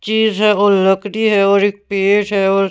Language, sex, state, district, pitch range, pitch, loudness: Hindi, female, Punjab, Pathankot, 195-210 Hz, 205 Hz, -14 LUFS